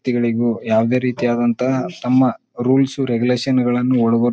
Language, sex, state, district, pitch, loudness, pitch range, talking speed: Kannada, male, Karnataka, Bijapur, 125 Hz, -18 LUFS, 120-125 Hz, 110 wpm